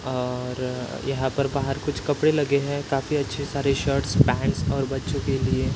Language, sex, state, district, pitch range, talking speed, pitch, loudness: Hindi, male, Maharashtra, Chandrapur, 130-140 Hz, 185 wpm, 140 Hz, -24 LUFS